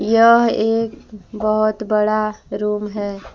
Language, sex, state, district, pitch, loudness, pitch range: Hindi, female, Jharkhand, Palamu, 215 Hz, -18 LUFS, 210-225 Hz